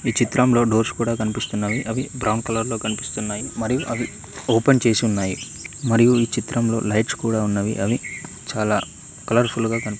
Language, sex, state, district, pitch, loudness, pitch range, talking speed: Telugu, male, Telangana, Mahabubabad, 115 Hz, -21 LUFS, 110-120 Hz, 160 wpm